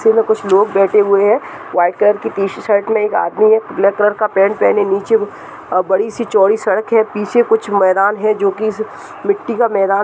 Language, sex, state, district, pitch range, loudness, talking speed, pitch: Hindi, male, Uttar Pradesh, Deoria, 195-220 Hz, -14 LUFS, 235 wpm, 210 Hz